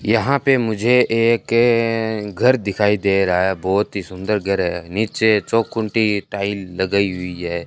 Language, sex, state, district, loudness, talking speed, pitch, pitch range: Hindi, male, Rajasthan, Bikaner, -18 LUFS, 155 wpm, 105 Hz, 95-115 Hz